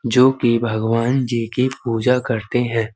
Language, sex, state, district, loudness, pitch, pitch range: Hindi, male, Uttar Pradesh, Budaun, -18 LUFS, 120 Hz, 115-125 Hz